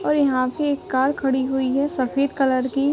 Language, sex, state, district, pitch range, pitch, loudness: Hindi, female, Uttar Pradesh, Ghazipur, 260-285 Hz, 270 Hz, -21 LUFS